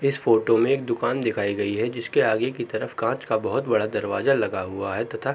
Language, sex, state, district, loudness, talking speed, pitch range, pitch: Hindi, male, Uttar Pradesh, Jalaun, -24 LUFS, 255 wpm, 110-125 Hz, 115 Hz